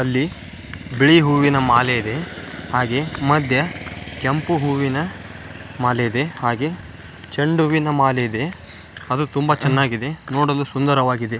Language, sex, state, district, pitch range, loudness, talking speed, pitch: Kannada, male, Karnataka, Dharwad, 115-145 Hz, -19 LUFS, 110 wpm, 135 Hz